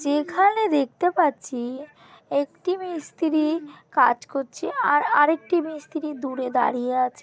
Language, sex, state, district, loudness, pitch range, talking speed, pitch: Bengali, female, West Bengal, Kolkata, -23 LUFS, 275-330 Hz, 115 wpm, 295 Hz